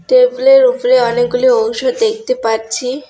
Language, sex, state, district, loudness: Bengali, female, West Bengal, Alipurduar, -13 LUFS